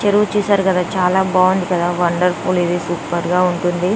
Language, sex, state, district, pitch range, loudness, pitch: Telugu, female, Andhra Pradesh, Anantapur, 175-190 Hz, -16 LUFS, 180 Hz